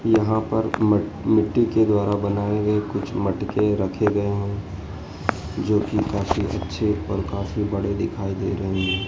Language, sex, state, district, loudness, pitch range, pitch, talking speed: Hindi, male, Madhya Pradesh, Dhar, -23 LUFS, 95-105 Hz, 100 Hz, 150 wpm